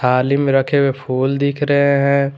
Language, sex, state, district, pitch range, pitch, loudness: Hindi, male, Jharkhand, Garhwa, 135-140 Hz, 140 Hz, -16 LUFS